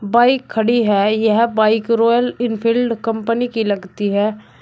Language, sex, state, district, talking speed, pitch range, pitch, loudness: Hindi, male, Uttar Pradesh, Shamli, 140 wpm, 215-235 Hz, 225 Hz, -17 LUFS